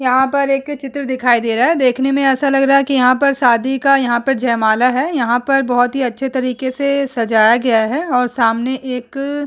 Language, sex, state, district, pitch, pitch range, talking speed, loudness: Hindi, female, Uttar Pradesh, Budaun, 260 Hz, 245-275 Hz, 235 wpm, -15 LUFS